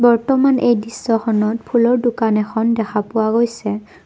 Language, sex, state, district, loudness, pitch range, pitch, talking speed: Assamese, female, Assam, Kamrup Metropolitan, -17 LUFS, 215-240 Hz, 230 Hz, 175 wpm